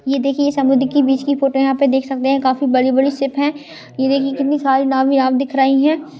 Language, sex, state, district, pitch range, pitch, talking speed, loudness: Hindi, female, Maharashtra, Sindhudurg, 265-280 Hz, 275 Hz, 250 wpm, -16 LUFS